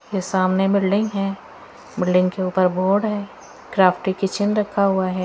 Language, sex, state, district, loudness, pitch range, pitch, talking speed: Hindi, female, Haryana, Charkhi Dadri, -20 LUFS, 185-200 Hz, 195 Hz, 170 wpm